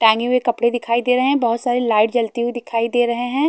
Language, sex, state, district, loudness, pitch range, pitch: Hindi, female, Haryana, Charkhi Dadri, -18 LUFS, 235-245 Hz, 240 Hz